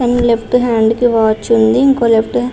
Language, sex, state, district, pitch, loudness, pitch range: Telugu, female, Andhra Pradesh, Visakhapatnam, 235 Hz, -12 LUFS, 225-245 Hz